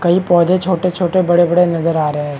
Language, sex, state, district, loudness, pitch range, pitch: Hindi, male, Maharashtra, Chandrapur, -14 LUFS, 165-180 Hz, 175 Hz